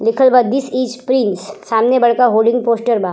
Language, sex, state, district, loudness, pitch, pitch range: Bhojpuri, female, Uttar Pradesh, Gorakhpur, -14 LUFS, 240 Hz, 225-255 Hz